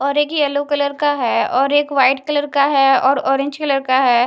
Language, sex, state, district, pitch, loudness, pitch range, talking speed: Hindi, female, Maharashtra, Mumbai Suburban, 280 Hz, -16 LUFS, 270-290 Hz, 240 wpm